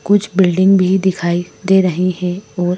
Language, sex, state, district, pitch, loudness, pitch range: Hindi, female, Madhya Pradesh, Bhopal, 185 Hz, -15 LUFS, 180-190 Hz